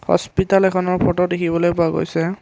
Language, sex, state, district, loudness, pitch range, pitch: Assamese, male, Assam, Kamrup Metropolitan, -18 LUFS, 170-185 Hz, 175 Hz